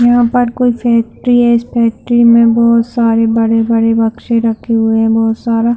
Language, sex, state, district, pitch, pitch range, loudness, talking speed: Hindi, female, Chhattisgarh, Bilaspur, 230 Hz, 225-240 Hz, -11 LUFS, 175 wpm